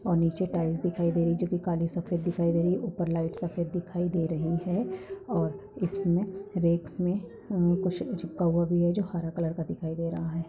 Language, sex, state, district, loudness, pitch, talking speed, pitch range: Hindi, female, Goa, North and South Goa, -29 LUFS, 175 Hz, 210 wpm, 170-180 Hz